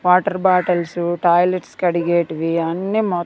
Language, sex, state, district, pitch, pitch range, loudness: Telugu, female, Andhra Pradesh, Sri Satya Sai, 175 Hz, 170-185 Hz, -18 LUFS